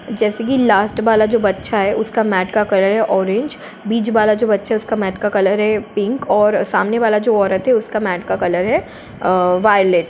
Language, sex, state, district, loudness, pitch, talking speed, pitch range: Hindi, female, Jharkhand, Sahebganj, -16 LUFS, 215 Hz, 200 wpm, 200-225 Hz